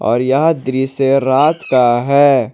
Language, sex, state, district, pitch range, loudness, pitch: Hindi, male, Jharkhand, Ranchi, 130-140 Hz, -13 LUFS, 135 Hz